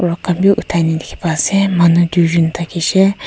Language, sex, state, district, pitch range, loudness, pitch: Nagamese, female, Nagaland, Kohima, 165-190 Hz, -14 LUFS, 170 Hz